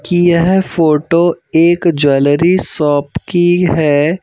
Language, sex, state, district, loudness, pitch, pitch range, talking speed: Hindi, male, Madhya Pradesh, Bhopal, -12 LUFS, 170 Hz, 150-175 Hz, 115 wpm